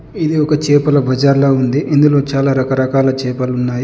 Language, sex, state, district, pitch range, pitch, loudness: Telugu, male, Telangana, Adilabad, 130-145 Hz, 140 Hz, -13 LUFS